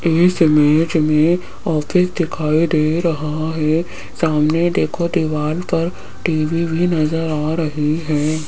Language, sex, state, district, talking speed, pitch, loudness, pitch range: Hindi, female, Rajasthan, Jaipur, 125 wpm, 160 Hz, -17 LUFS, 155-170 Hz